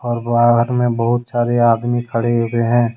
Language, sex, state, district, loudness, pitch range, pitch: Hindi, male, Jharkhand, Deoghar, -16 LUFS, 115-120 Hz, 120 Hz